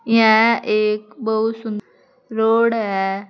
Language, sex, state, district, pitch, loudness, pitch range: Hindi, female, Uttar Pradesh, Saharanpur, 220 Hz, -18 LUFS, 210-225 Hz